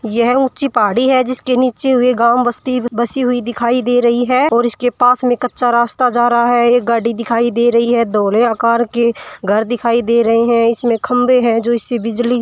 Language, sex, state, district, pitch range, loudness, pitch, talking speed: Marwari, female, Rajasthan, Churu, 235-250 Hz, -14 LUFS, 240 Hz, 215 wpm